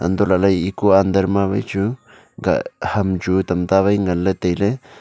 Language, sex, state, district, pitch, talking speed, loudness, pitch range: Wancho, male, Arunachal Pradesh, Longding, 95 Hz, 170 wpm, -18 LUFS, 95-100 Hz